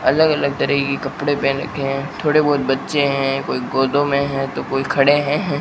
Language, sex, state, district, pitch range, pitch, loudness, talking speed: Hindi, male, Rajasthan, Bikaner, 135-145 Hz, 140 Hz, -18 LUFS, 215 wpm